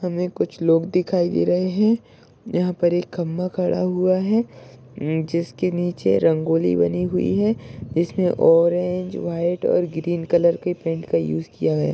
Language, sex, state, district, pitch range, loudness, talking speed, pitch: Hindi, male, Maharashtra, Solapur, 125-180 Hz, -21 LUFS, 160 wpm, 170 Hz